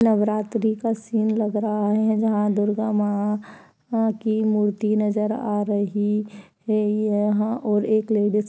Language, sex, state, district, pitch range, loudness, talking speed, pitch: Hindi, male, Bihar, Madhepura, 210-220 Hz, -22 LUFS, 140 wpm, 210 Hz